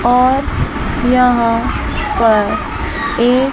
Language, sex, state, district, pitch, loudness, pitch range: Hindi, female, Chandigarh, Chandigarh, 245 Hz, -14 LUFS, 230-255 Hz